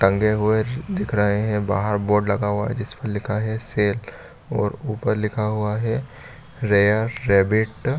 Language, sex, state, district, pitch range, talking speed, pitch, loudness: Hindi, male, Chhattisgarh, Bilaspur, 105-115 Hz, 175 wpm, 105 Hz, -22 LUFS